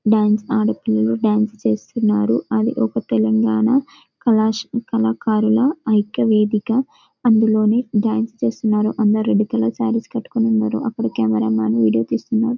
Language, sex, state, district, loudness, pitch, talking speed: Telugu, female, Telangana, Karimnagar, -18 LUFS, 215 Hz, 125 wpm